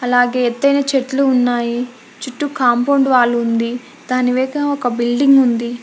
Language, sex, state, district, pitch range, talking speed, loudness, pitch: Telugu, female, Telangana, Hyderabad, 240-270 Hz, 125 wpm, -15 LUFS, 250 Hz